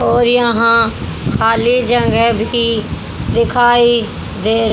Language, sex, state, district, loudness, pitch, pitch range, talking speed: Hindi, female, Haryana, Jhajjar, -13 LUFS, 235 Hz, 225-240 Hz, 90 wpm